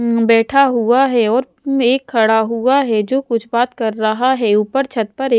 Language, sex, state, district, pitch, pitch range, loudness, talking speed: Hindi, female, Haryana, Jhajjar, 235 Hz, 225-265 Hz, -15 LUFS, 235 wpm